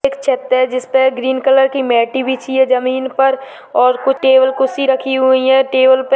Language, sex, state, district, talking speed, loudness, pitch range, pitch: Hindi, female, Chhattisgarh, Bastar, 215 wpm, -13 LUFS, 260-270 Hz, 265 Hz